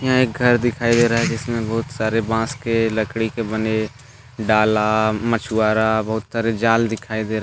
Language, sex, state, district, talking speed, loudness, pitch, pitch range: Hindi, male, Jharkhand, Deoghar, 185 wpm, -19 LUFS, 115 Hz, 110-115 Hz